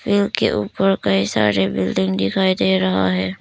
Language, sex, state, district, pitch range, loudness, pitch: Hindi, female, Arunachal Pradesh, Papum Pare, 95-105 Hz, -18 LUFS, 95 Hz